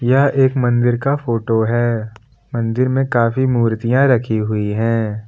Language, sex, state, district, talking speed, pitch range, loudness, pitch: Hindi, male, Jharkhand, Palamu, 150 wpm, 115-130 Hz, -17 LUFS, 120 Hz